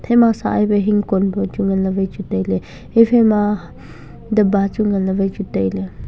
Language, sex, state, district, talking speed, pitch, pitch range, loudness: Wancho, male, Arunachal Pradesh, Longding, 160 wpm, 200 Hz, 190-210 Hz, -17 LUFS